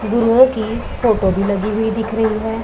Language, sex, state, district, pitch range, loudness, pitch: Hindi, female, Punjab, Pathankot, 215-225 Hz, -16 LUFS, 225 Hz